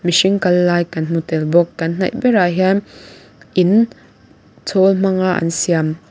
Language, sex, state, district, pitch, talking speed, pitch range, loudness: Mizo, female, Mizoram, Aizawl, 180 Hz, 165 wpm, 165-190 Hz, -16 LUFS